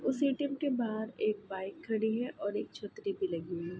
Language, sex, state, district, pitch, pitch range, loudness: Hindi, female, Uttar Pradesh, Ghazipur, 215 Hz, 190-245 Hz, -35 LUFS